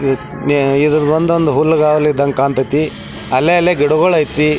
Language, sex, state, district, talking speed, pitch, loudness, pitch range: Kannada, male, Karnataka, Belgaum, 90 wpm, 150 Hz, -13 LUFS, 140-155 Hz